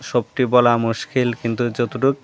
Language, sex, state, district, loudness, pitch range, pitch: Bengali, male, Tripura, Dhalai, -19 LUFS, 120-125 Hz, 120 Hz